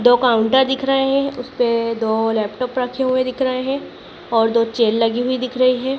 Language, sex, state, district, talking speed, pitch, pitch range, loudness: Hindi, female, Madhya Pradesh, Dhar, 220 wpm, 250 Hz, 230-260 Hz, -18 LUFS